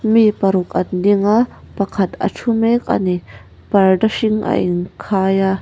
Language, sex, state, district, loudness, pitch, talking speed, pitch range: Mizo, female, Mizoram, Aizawl, -17 LUFS, 195 Hz, 180 wpm, 185-220 Hz